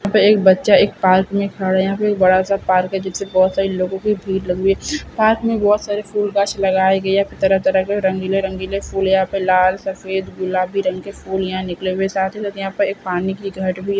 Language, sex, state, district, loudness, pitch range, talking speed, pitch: Hindi, female, Bihar, Saharsa, -17 LUFS, 190-200 Hz, 260 wpm, 190 Hz